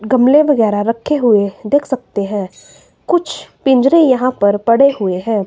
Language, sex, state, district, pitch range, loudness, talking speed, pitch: Hindi, female, Himachal Pradesh, Shimla, 205-275 Hz, -13 LUFS, 155 wpm, 245 Hz